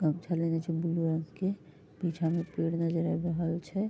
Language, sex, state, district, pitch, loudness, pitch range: Maithili, female, Bihar, Vaishali, 165 Hz, -32 LUFS, 165-170 Hz